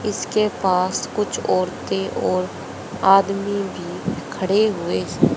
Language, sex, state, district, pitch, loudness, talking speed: Hindi, female, Haryana, Charkhi Dadri, 185 Hz, -21 LUFS, 100 wpm